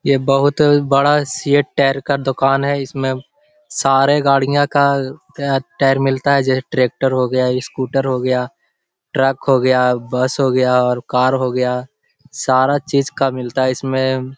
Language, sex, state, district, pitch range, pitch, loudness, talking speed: Hindi, male, Bihar, Jahanabad, 130-140 Hz, 135 Hz, -16 LUFS, 160 wpm